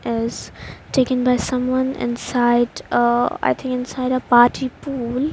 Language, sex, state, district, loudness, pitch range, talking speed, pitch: English, female, Haryana, Rohtak, -19 LUFS, 240-255 Hz, 135 wpm, 250 Hz